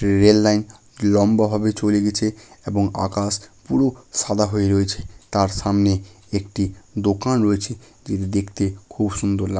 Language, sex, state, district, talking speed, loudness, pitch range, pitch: Bengali, male, West Bengal, Malda, 135 wpm, -21 LUFS, 100-105 Hz, 105 Hz